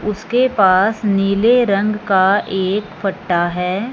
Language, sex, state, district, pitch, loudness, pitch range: Hindi, male, Punjab, Fazilka, 200 Hz, -16 LUFS, 190-210 Hz